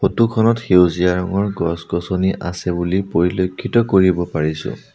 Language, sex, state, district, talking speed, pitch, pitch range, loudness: Assamese, male, Assam, Sonitpur, 120 wpm, 90 Hz, 85-100 Hz, -18 LUFS